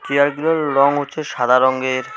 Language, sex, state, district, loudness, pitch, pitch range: Bengali, male, West Bengal, Alipurduar, -17 LUFS, 140 Hz, 130-150 Hz